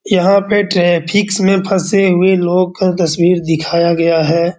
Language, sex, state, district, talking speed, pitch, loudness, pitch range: Hindi, male, Bihar, Darbhanga, 155 wpm, 180 Hz, -13 LUFS, 170-195 Hz